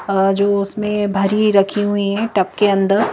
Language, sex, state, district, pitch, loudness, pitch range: Hindi, female, Madhya Pradesh, Bhopal, 200 Hz, -16 LUFS, 195-210 Hz